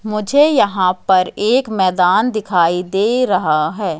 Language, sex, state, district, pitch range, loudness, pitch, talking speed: Hindi, female, Madhya Pradesh, Katni, 180-220 Hz, -15 LUFS, 195 Hz, 135 wpm